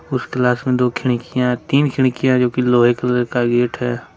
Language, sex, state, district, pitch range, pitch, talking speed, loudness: Hindi, male, Jharkhand, Ranchi, 120-125 Hz, 125 Hz, 200 wpm, -17 LUFS